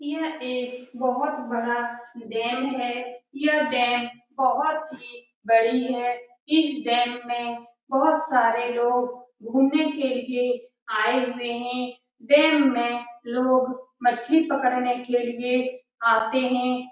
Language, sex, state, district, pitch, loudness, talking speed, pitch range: Hindi, female, Bihar, Lakhisarai, 245 Hz, -24 LUFS, 120 wpm, 240-260 Hz